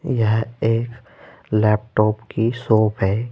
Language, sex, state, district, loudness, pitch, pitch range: Hindi, male, Uttar Pradesh, Saharanpur, -20 LUFS, 110 Hz, 105-115 Hz